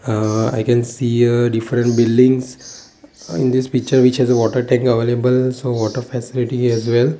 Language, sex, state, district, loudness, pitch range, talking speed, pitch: English, male, Gujarat, Valsad, -16 LUFS, 120-125 Hz, 165 wpm, 125 Hz